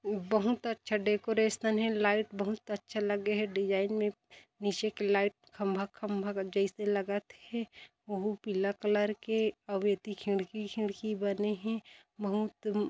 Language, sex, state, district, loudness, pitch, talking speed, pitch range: Hindi, female, Chhattisgarh, Kabirdham, -33 LUFS, 210 Hz, 125 wpm, 200-215 Hz